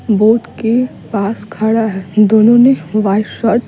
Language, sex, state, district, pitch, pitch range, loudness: Hindi, female, Bihar, Patna, 220 Hz, 210-235 Hz, -13 LUFS